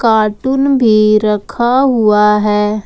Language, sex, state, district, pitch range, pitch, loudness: Hindi, female, Jharkhand, Ranchi, 210-240 Hz, 215 Hz, -11 LUFS